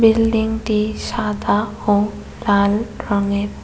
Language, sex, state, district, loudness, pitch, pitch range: Bengali, female, West Bengal, Cooch Behar, -19 LUFS, 210 Hz, 205-220 Hz